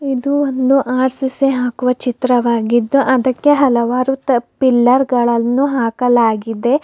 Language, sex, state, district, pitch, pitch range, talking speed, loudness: Kannada, female, Karnataka, Bidar, 255 Hz, 240-270 Hz, 95 wpm, -15 LUFS